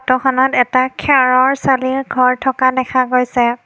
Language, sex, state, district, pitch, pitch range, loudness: Assamese, female, Assam, Kamrup Metropolitan, 255 Hz, 255-265 Hz, -14 LUFS